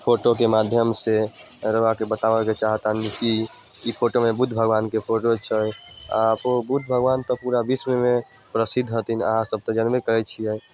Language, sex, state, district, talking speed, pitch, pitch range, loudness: Maithili, male, Bihar, Samastipur, 190 wpm, 115 Hz, 110-120 Hz, -22 LUFS